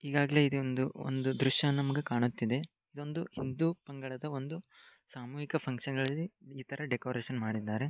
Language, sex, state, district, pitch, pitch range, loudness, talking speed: Kannada, male, Karnataka, Dharwad, 135 Hz, 130-145 Hz, -34 LUFS, 90 wpm